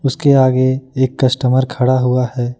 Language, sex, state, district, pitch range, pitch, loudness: Hindi, male, Jharkhand, Ranchi, 125-130 Hz, 130 Hz, -14 LUFS